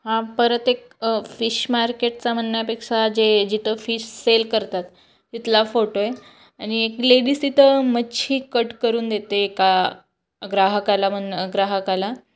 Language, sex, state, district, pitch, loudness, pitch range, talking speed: Marathi, female, Maharashtra, Chandrapur, 225 Hz, -20 LUFS, 205-235 Hz, 130 wpm